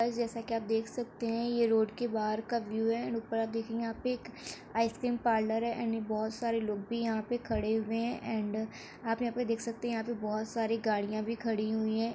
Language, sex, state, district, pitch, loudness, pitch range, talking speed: Hindi, female, Bihar, Bhagalpur, 230 Hz, -33 LUFS, 220-235 Hz, 250 wpm